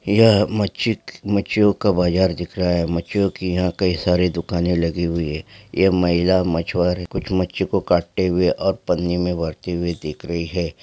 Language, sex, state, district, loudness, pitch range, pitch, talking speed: Hindi, male, West Bengal, Malda, -20 LUFS, 85-95 Hz, 90 Hz, 185 wpm